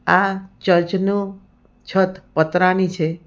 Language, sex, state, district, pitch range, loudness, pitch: Gujarati, female, Gujarat, Valsad, 180-190 Hz, -19 LUFS, 185 Hz